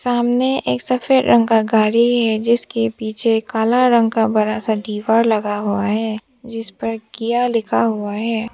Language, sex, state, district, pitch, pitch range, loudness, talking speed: Hindi, female, Arunachal Pradesh, Papum Pare, 225 Hz, 215-235 Hz, -17 LUFS, 170 wpm